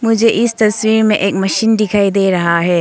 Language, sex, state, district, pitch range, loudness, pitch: Hindi, female, Arunachal Pradesh, Longding, 195-225 Hz, -13 LUFS, 210 Hz